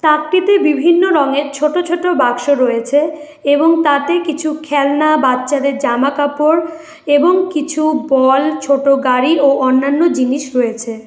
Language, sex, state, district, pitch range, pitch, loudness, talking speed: Bengali, female, West Bengal, Alipurduar, 275-315 Hz, 290 Hz, -13 LUFS, 125 wpm